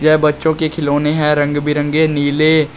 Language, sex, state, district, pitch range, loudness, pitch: Hindi, male, Uttar Pradesh, Shamli, 145-155 Hz, -15 LUFS, 150 Hz